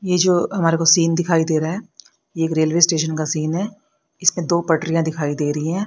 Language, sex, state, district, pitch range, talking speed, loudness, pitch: Hindi, female, Haryana, Rohtak, 160-180 Hz, 225 wpm, -18 LUFS, 165 Hz